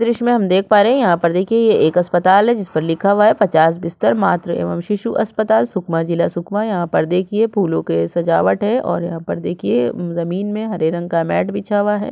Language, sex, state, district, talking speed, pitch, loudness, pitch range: Hindi, female, Chhattisgarh, Sukma, 235 wpm, 185 Hz, -16 LUFS, 170-215 Hz